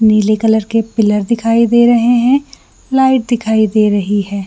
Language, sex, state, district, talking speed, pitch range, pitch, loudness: Hindi, female, Jharkhand, Jamtara, 175 wpm, 215-240 Hz, 225 Hz, -12 LUFS